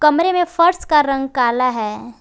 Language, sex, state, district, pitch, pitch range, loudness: Hindi, female, Jharkhand, Garhwa, 275 Hz, 240-340 Hz, -16 LUFS